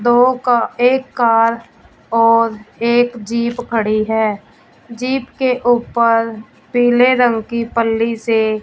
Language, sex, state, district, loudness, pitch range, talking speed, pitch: Hindi, female, Punjab, Fazilka, -15 LUFS, 225-245 Hz, 120 wpm, 235 Hz